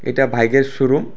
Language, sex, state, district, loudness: Bengali, male, Tripura, West Tripura, -16 LUFS